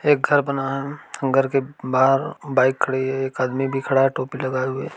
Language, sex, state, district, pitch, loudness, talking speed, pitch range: Hindi, male, Uttar Pradesh, Varanasi, 135 Hz, -21 LUFS, 215 wpm, 130-135 Hz